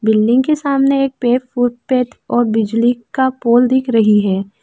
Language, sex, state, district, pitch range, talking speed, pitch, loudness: Hindi, female, Arunachal Pradesh, Lower Dibang Valley, 225-260 Hz, 140 wpm, 245 Hz, -15 LUFS